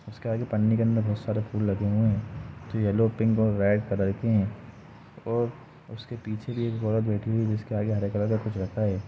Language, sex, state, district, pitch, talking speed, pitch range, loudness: Hindi, male, Uttar Pradesh, Jalaun, 110 Hz, 225 wpm, 105-115 Hz, -27 LUFS